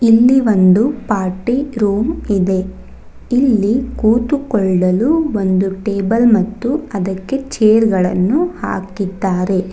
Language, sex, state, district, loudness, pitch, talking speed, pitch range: Kannada, female, Karnataka, Bangalore, -15 LUFS, 215 Hz, 85 wpm, 190-250 Hz